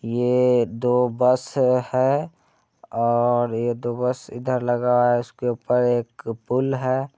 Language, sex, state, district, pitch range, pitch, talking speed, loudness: Hindi, male, Bihar, Muzaffarpur, 120-125 Hz, 125 Hz, 140 wpm, -21 LUFS